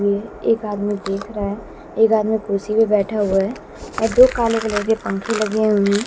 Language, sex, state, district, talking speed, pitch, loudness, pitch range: Hindi, female, Bihar, West Champaran, 200 wpm, 210 Hz, -19 LUFS, 200-225 Hz